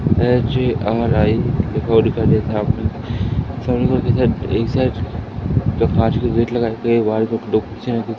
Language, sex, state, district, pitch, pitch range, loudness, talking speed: Hindi, male, Madhya Pradesh, Katni, 115 Hz, 110-120 Hz, -18 LUFS, 50 wpm